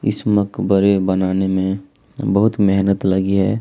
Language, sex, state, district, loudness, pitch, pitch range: Hindi, male, Chhattisgarh, Kabirdham, -17 LUFS, 100 Hz, 95-100 Hz